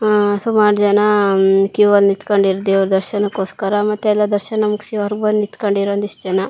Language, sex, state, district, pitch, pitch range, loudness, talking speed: Kannada, female, Karnataka, Shimoga, 205 Hz, 195-210 Hz, -16 LUFS, 155 wpm